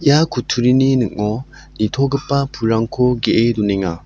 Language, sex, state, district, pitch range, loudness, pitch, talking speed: Garo, male, Meghalaya, South Garo Hills, 110-140 Hz, -17 LUFS, 125 Hz, 105 wpm